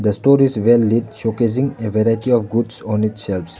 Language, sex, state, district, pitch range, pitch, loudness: English, male, Arunachal Pradesh, Lower Dibang Valley, 105-120 Hz, 115 Hz, -17 LUFS